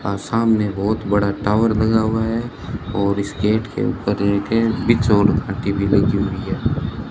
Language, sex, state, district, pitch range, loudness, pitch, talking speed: Hindi, male, Rajasthan, Bikaner, 100-110 Hz, -19 LUFS, 105 Hz, 170 wpm